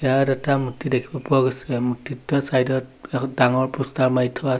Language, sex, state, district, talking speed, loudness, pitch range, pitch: Assamese, male, Assam, Sonitpur, 195 wpm, -22 LUFS, 130-135 Hz, 130 Hz